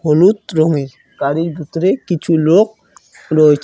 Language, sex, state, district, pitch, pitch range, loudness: Bengali, male, West Bengal, Cooch Behar, 160 Hz, 150-185 Hz, -15 LUFS